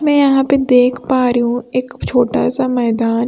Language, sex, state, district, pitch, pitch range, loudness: Hindi, female, Chhattisgarh, Raipur, 250 Hz, 240-270 Hz, -14 LUFS